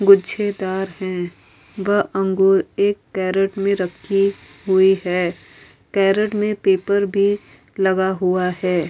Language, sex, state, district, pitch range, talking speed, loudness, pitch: Hindi, female, Uttar Pradesh, Hamirpur, 185-200 Hz, 115 wpm, -19 LUFS, 195 Hz